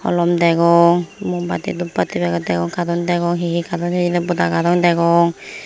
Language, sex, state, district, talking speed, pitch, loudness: Chakma, female, Tripura, Unakoti, 160 wpm, 170 Hz, -17 LUFS